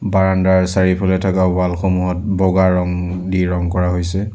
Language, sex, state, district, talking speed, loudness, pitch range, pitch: Assamese, male, Assam, Sonitpur, 150 wpm, -16 LUFS, 90-95 Hz, 95 Hz